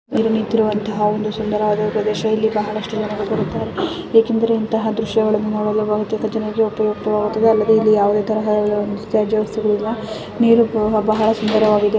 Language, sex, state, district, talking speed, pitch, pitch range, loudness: Kannada, female, Karnataka, Gulbarga, 135 wpm, 215 Hz, 210-220 Hz, -18 LUFS